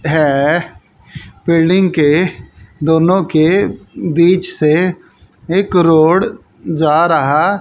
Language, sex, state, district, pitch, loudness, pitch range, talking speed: Hindi, female, Haryana, Jhajjar, 165 Hz, -13 LUFS, 150-180 Hz, 85 wpm